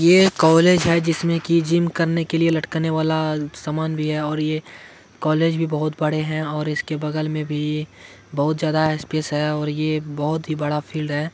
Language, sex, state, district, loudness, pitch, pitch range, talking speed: Hindi, male, Bihar, Madhepura, -21 LUFS, 155 Hz, 150-165 Hz, 160 wpm